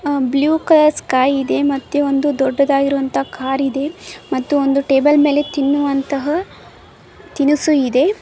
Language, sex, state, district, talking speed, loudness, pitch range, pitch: Kannada, female, Karnataka, Dharwad, 125 wpm, -16 LUFS, 275-290 Hz, 280 Hz